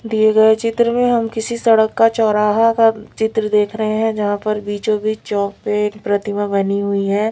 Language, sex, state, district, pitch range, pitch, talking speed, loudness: Hindi, female, Bihar, Patna, 205-225 Hz, 215 Hz, 195 wpm, -16 LUFS